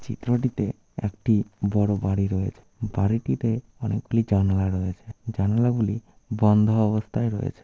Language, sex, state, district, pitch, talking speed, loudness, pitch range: Bengali, male, West Bengal, Malda, 105 Hz, 100 wpm, -25 LUFS, 100-115 Hz